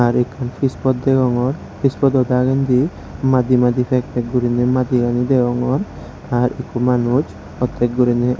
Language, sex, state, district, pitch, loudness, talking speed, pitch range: Chakma, male, Tripura, West Tripura, 125 Hz, -17 LUFS, 130 wpm, 125-130 Hz